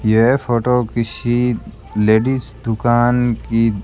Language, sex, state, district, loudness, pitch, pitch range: Hindi, male, Rajasthan, Bikaner, -17 LUFS, 120 Hz, 110-120 Hz